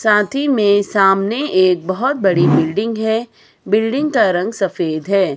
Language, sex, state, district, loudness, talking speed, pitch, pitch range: Hindi, female, Himachal Pradesh, Shimla, -16 LUFS, 155 wpm, 205 Hz, 190-225 Hz